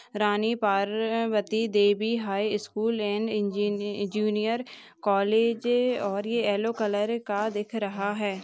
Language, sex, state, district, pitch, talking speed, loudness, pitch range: Hindi, female, Maharashtra, Sindhudurg, 210 Hz, 130 wpm, -27 LUFS, 205-225 Hz